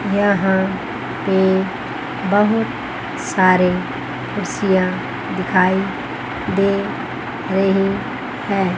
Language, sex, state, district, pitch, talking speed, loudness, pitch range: Hindi, female, Chandigarh, Chandigarh, 195 Hz, 60 wpm, -19 LUFS, 190-200 Hz